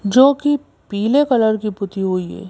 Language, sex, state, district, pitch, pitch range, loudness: Hindi, female, Madhya Pradesh, Bhopal, 220 Hz, 200-270 Hz, -17 LUFS